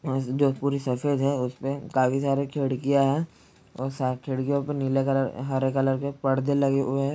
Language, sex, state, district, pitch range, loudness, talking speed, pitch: Hindi, male, Bihar, Jahanabad, 135-140 Hz, -26 LUFS, 175 wpm, 135 Hz